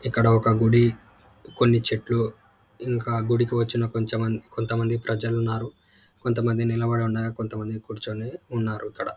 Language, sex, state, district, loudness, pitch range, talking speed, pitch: Telugu, male, Andhra Pradesh, Anantapur, -25 LUFS, 110-115 Hz, 125 wpm, 115 Hz